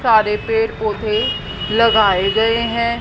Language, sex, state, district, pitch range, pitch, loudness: Hindi, female, Haryana, Charkhi Dadri, 210-230 Hz, 220 Hz, -16 LUFS